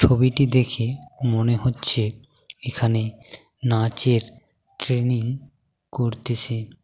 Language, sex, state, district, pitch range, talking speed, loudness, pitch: Bengali, male, West Bengal, Cooch Behar, 115-130 Hz, 70 wpm, -21 LUFS, 125 Hz